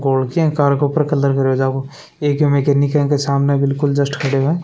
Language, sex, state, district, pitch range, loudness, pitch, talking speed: Hindi, male, Rajasthan, Churu, 140-145 Hz, -16 LUFS, 140 Hz, 235 wpm